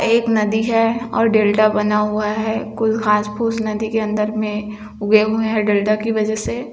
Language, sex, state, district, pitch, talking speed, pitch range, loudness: Hindi, female, Chhattisgarh, Bilaspur, 215 Hz, 180 wpm, 210-225 Hz, -18 LUFS